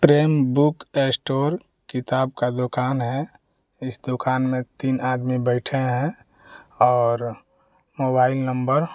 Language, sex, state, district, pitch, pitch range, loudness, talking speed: Hindi, male, Bihar, West Champaran, 130 Hz, 125-135 Hz, -22 LUFS, 120 wpm